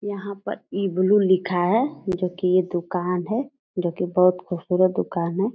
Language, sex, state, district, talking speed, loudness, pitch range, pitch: Hindi, female, Bihar, Purnia, 175 wpm, -23 LUFS, 180-200 Hz, 185 Hz